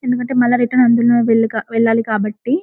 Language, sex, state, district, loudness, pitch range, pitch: Telugu, female, Telangana, Karimnagar, -15 LUFS, 225-245 Hz, 235 Hz